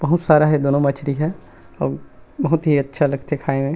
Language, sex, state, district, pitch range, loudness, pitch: Chhattisgarhi, male, Chhattisgarh, Rajnandgaon, 140-155 Hz, -19 LUFS, 145 Hz